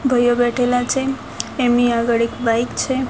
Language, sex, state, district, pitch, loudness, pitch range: Gujarati, female, Gujarat, Gandhinagar, 245 Hz, -18 LUFS, 240-260 Hz